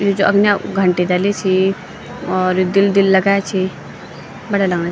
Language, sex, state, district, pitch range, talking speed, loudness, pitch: Garhwali, female, Uttarakhand, Tehri Garhwal, 185-200 Hz, 170 wpm, -15 LUFS, 195 Hz